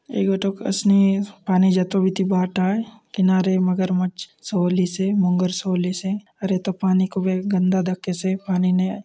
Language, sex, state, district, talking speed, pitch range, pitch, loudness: Halbi, male, Chhattisgarh, Bastar, 150 wpm, 185-195 Hz, 190 Hz, -21 LUFS